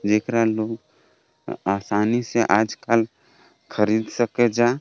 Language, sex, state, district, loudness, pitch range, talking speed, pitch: Bhojpuri, male, Jharkhand, Palamu, -22 LUFS, 105-120 Hz, 110 wpm, 110 Hz